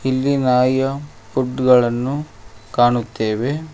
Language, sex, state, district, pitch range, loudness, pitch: Kannada, male, Karnataka, Koppal, 120-135 Hz, -18 LUFS, 130 Hz